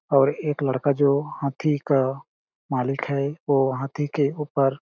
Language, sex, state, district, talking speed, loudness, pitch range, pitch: Hindi, male, Chhattisgarh, Balrampur, 160 wpm, -24 LUFS, 135-145 Hz, 140 Hz